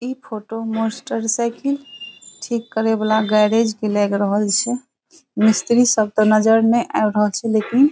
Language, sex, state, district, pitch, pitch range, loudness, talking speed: Maithili, female, Bihar, Saharsa, 225 Hz, 215-240 Hz, -18 LUFS, 160 wpm